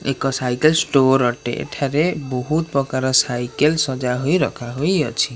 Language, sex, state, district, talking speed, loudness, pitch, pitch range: Odia, male, Odisha, Khordha, 135 wpm, -19 LUFS, 135 Hz, 125-150 Hz